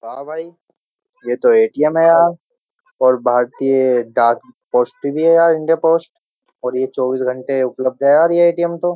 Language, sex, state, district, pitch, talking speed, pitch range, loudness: Hindi, male, Uttar Pradesh, Jyotiba Phule Nagar, 160 Hz, 175 wpm, 130-170 Hz, -15 LUFS